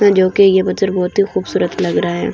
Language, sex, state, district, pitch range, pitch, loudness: Hindi, female, Delhi, New Delhi, 185-200 Hz, 195 Hz, -15 LUFS